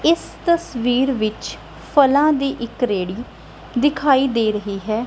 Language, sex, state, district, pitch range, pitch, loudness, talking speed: Punjabi, female, Punjab, Kapurthala, 220-285 Hz, 250 Hz, -19 LUFS, 130 wpm